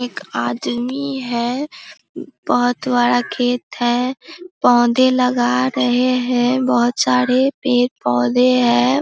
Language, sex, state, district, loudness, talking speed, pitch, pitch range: Hindi, female, Bihar, Sitamarhi, -17 LUFS, 100 wpm, 245 Hz, 240-255 Hz